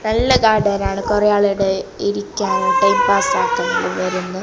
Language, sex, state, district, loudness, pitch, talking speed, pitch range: Malayalam, female, Kerala, Kasaragod, -17 LUFS, 210 Hz, 135 wpm, 200-260 Hz